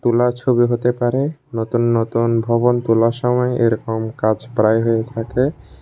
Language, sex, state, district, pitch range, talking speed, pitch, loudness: Bengali, male, Tripura, West Tripura, 115-125 Hz, 145 wpm, 120 Hz, -18 LUFS